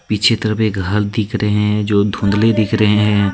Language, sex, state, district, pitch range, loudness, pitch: Hindi, male, Jharkhand, Deoghar, 105-110 Hz, -15 LUFS, 105 Hz